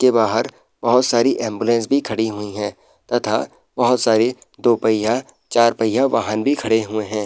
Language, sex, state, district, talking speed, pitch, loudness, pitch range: Hindi, male, Uttar Pradesh, Muzaffarnagar, 175 wpm, 115 Hz, -19 LUFS, 110-120 Hz